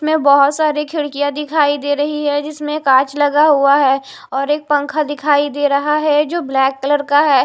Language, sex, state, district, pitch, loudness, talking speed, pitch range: Hindi, female, Maharashtra, Mumbai Suburban, 290 Hz, -15 LUFS, 200 wpm, 285-300 Hz